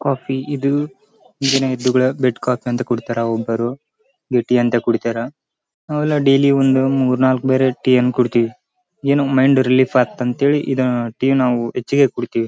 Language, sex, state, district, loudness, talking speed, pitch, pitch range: Kannada, male, Karnataka, Raichur, -17 LUFS, 150 wpm, 130 Hz, 120-140 Hz